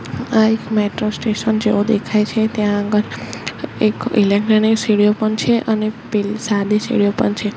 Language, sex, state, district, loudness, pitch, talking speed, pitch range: Gujarati, female, Gujarat, Gandhinagar, -17 LUFS, 215 Hz, 150 wpm, 210-220 Hz